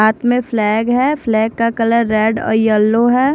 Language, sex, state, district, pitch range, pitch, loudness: Hindi, female, Odisha, Khordha, 220-245 Hz, 230 Hz, -14 LUFS